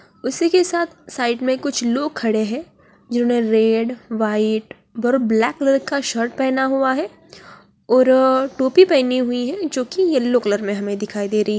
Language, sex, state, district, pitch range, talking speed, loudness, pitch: Hindi, female, Bihar, Araria, 225-270 Hz, 170 wpm, -18 LUFS, 250 Hz